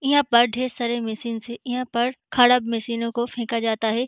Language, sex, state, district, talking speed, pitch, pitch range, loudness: Hindi, female, Bihar, Begusarai, 205 wpm, 235 Hz, 230-245 Hz, -22 LUFS